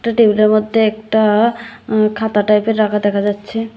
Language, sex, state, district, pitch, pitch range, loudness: Bengali, female, Tripura, West Tripura, 215 Hz, 210-225 Hz, -15 LUFS